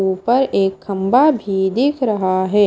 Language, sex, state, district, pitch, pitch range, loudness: Hindi, female, Himachal Pradesh, Shimla, 200 Hz, 190-250 Hz, -17 LUFS